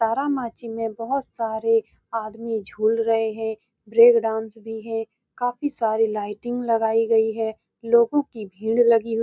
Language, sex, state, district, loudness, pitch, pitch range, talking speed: Hindi, female, Bihar, Saran, -22 LUFS, 225 Hz, 220-235 Hz, 155 wpm